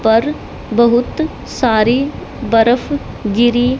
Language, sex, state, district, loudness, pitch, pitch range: Hindi, female, Haryana, Charkhi Dadri, -15 LUFS, 240 Hz, 225-265 Hz